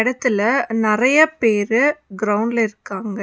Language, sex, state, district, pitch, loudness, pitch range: Tamil, female, Tamil Nadu, Nilgiris, 225 Hz, -17 LUFS, 210-250 Hz